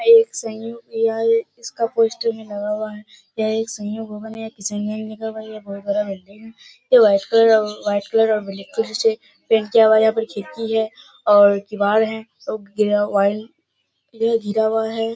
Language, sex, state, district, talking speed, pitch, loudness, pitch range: Hindi, female, Bihar, Kishanganj, 125 wpm, 220 Hz, -19 LUFS, 210-225 Hz